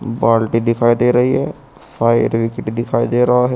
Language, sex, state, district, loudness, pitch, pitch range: Hindi, male, Uttar Pradesh, Saharanpur, -16 LUFS, 120 Hz, 115-125 Hz